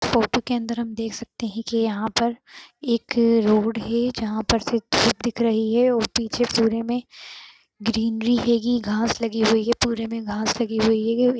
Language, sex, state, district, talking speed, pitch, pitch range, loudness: Hindi, female, Uttar Pradesh, Jyotiba Phule Nagar, 185 wpm, 230 Hz, 225-235 Hz, -22 LUFS